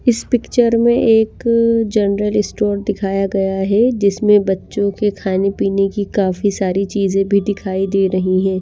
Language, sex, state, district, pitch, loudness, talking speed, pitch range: Hindi, female, Odisha, Malkangiri, 200 Hz, -16 LUFS, 160 wpm, 195-215 Hz